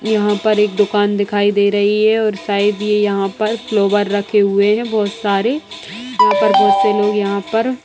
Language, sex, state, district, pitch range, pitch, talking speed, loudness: Hindi, female, Bihar, Saran, 200-215 Hz, 205 Hz, 205 wpm, -15 LUFS